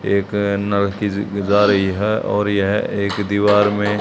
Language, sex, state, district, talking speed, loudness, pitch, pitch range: Hindi, male, Haryana, Charkhi Dadri, 135 wpm, -18 LUFS, 100 Hz, 100-105 Hz